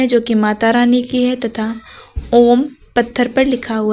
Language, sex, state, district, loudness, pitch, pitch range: Hindi, female, Uttar Pradesh, Lucknow, -15 LUFS, 240 Hz, 225-250 Hz